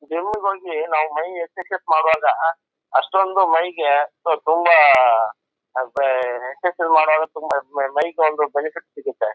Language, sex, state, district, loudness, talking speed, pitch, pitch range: Kannada, male, Karnataka, Chamarajanagar, -19 LUFS, 110 wpm, 160 Hz, 145-175 Hz